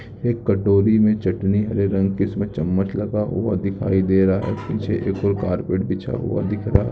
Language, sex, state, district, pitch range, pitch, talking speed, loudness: Hindi, male, Uttar Pradesh, Muzaffarnagar, 95-105 Hz, 100 Hz, 200 wpm, -21 LUFS